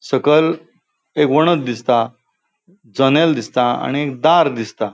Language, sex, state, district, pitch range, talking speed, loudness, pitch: Konkani, male, Goa, North and South Goa, 120-155 Hz, 120 wpm, -16 LUFS, 135 Hz